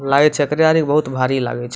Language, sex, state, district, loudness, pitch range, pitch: Maithili, male, Bihar, Supaul, -16 LUFS, 130-150 Hz, 140 Hz